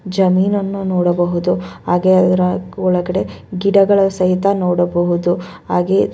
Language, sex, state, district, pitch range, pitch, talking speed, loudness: Kannada, female, Karnataka, Bellary, 180-195 Hz, 185 Hz, 80 wpm, -16 LUFS